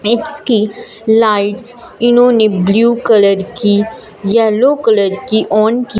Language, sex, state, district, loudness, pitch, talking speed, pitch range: Hindi, female, Punjab, Fazilka, -12 LUFS, 220 Hz, 110 wpm, 210-240 Hz